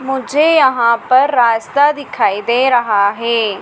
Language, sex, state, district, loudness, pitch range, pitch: Hindi, female, Madhya Pradesh, Dhar, -13 LUFS, 225-270 Hz, 240 Hz